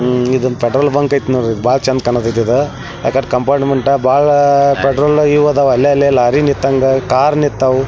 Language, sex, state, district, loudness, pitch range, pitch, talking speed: Kannada, male, Karnataka, Belgaum, -12 LUFS, 130-145 Hz, 135 Hz, 170 wpm